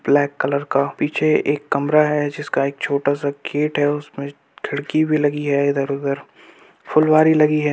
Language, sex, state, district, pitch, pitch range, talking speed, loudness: Hindi, male, Uttar Pradesh, Budaun, 145 Hz, 140-150 Hz, 180 wpm, -19 LUFS